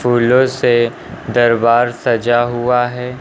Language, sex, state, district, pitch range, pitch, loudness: Hindi, male, Uttar Pradesh, Lucknow, 120-125 Hz, 120 Hz, -14 LUFS